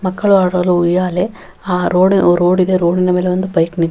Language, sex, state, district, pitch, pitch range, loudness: Kannada, female, Karnataka, Raichur, 180 Hz, 175-185 Hz, -14 LUFS